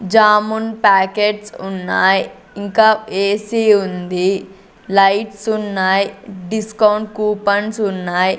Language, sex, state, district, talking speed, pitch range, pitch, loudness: Telugu, female, Andhra Pradesh, Sri Satya Sai, 80 wpm, 195-215 Hz, 205 Hz, -16 LUFS